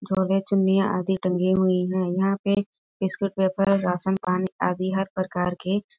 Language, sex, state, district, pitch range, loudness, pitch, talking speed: Hindi, female, Bihar, East Champaran, 185-195 Hz, -24 LUFS, 190 Hz, 170 wpm